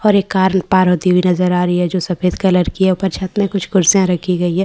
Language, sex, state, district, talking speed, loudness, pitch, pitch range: Hindi, female, Bihar, Katihar, 310 wpm, -15 LUFS, 185 Hz, 180-190 Hz